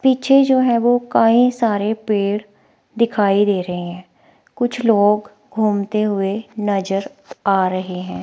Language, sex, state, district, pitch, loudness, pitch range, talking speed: Hindi, female, Himachal Pradesh, Shimla, 210 Hz, -17 LUFS, 200-240 Hz, 140 wpm